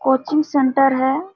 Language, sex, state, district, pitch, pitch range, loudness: Hindi, female, Jharkhand, Sahebganj, 270 Hz, 265-300 Hz, -17 LUFS